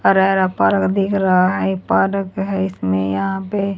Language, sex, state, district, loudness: Hindi, female, Haryana, Charkhi Dadri, -17 LUFS